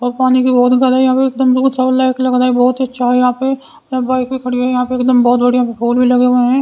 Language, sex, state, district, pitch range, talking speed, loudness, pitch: Hindi, male, Haryana, Rohtak, 250-260 Hz, 235 wpm, -13 LUFS, 255 Hz